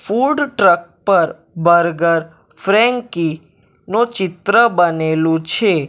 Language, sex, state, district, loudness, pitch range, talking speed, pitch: Gujarati, male, Gujarat, Valsad, -15 LUFS, 165-225 Hz, 90 wpm, 175 Hz